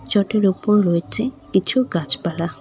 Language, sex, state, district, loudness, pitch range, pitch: Bengali, female, West Bengal, Cooch Behar, -18 LUFS, 170-210 Hz, 195 Hz